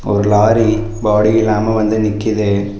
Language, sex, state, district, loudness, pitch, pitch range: Tamil, male, Tamil Nadu, Namakkal, -14 LUFS, 110 Hz, 105-110 Hz